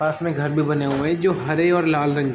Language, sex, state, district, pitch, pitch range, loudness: Hindi, male, Chhattisgarh, Raigarh, 155 Hz, 145-170 Hz, -20 LUFS